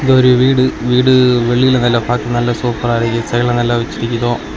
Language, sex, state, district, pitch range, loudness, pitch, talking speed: Tamil, male, Tamil Nadu, Kanyakumari, 120-125 Hz, -13 LUFS, 120 Hz, 185 wpm